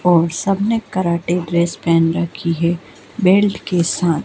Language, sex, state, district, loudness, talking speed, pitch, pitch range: Hindi, female, Madhya Pradesh, Dhar, -17 LUFS, 155 wpm, 175 Hz, 170-185 Hz